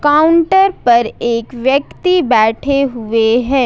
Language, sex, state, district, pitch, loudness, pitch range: Hindi, female, Jharkhand, Ranchi, 265 Hz, -13 LUFS, 235-305 Hz